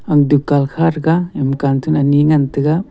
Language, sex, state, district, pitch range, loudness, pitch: Wancho, male, Arunachal Pradesh, Longding, 140-160 Hz, -14 LUFS, 145 Hz